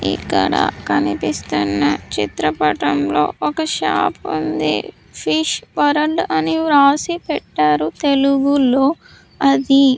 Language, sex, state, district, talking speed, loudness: Telugu, female, Andhra Pradesh, Sri Satya Sai, 80 wpm, -17 LUFS